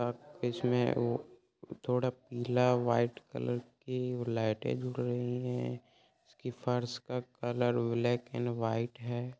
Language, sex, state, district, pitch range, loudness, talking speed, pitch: Hindi, male, Uttar Pradesh, Muzaffarnagar, 115-125 Hz, -34 LUFS, 120 wpm, 120 Hz